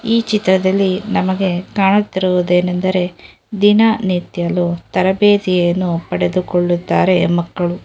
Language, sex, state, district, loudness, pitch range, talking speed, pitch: Kannada, female, Karnataka, Dharwad, -15 LUFS, 175-200 Hz, 60 wpm, 185 Hz